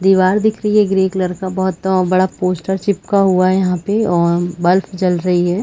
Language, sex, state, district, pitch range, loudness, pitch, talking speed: Hindi, female, Chhattisgarh, Raigarh, 180-195 Hz, -15 LUFS, 185 Hz, 225 wpm